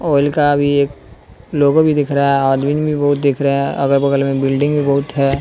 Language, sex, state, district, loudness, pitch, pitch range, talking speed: Hindi, male, Bihar, West Champaran, -15 LUFS, 140 Hz, 140-145 Hz, 235 wpm